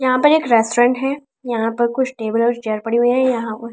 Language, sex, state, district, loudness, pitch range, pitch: Hindi, female, Delhi, New Delhi, -17 LUFS, 230-260 Hz, 240 Hz